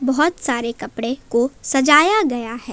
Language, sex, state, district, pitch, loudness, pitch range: Hindi, female, Jharkhand, Palamu, 255 Hz, -18 LUFS, 235-295 Hz